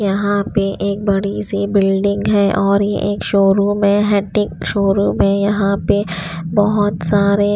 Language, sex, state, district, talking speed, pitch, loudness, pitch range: Hindi, female, Punjab, Pathankot, 150 wpm, 200 Hz, -16 LUFS, 195-205 Hz